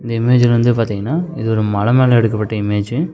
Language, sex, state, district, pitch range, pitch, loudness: Tamil, male, Tamil Nadu, Namakkal, 110-125 Hz, 115 Hz, -15 LUFS